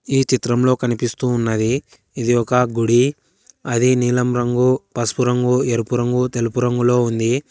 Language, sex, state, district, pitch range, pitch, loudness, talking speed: Telugu, male, Telangana, Hyderabad, 120-125 Hz, 125 Hz, -18 LUFS, 135 wpm